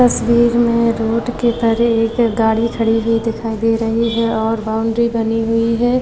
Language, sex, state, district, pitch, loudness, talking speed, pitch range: Hindi, female, Uttar Pradesh, Jyotiba Phule Nagar, 230 Hz, -16 LUFS, 180 wpm, 225-235 Hz